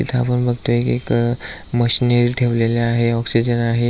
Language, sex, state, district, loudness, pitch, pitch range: Marathi, male, Maharashtra, Aurangabad, -18 LUFS, 120 Hz, 115-120 Hz